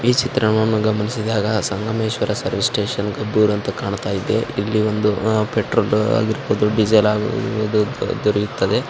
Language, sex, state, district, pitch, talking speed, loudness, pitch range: Kannada, male, Karnataka, Raichur, 110 Hz, 110 wpm, -19 LUFS, 105-110 Hz